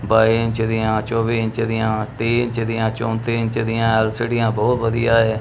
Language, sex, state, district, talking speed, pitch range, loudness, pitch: Punjabi, male, Punjab, Kapurthala, 175 wpm, 110-115 Hz, -19 LUFS, 115 Hz